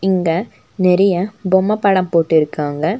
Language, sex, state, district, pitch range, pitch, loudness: Tamil, female, Tamil Nadu, Nilgiris, 165-195 Hz, 185 Hz, -16 LUFS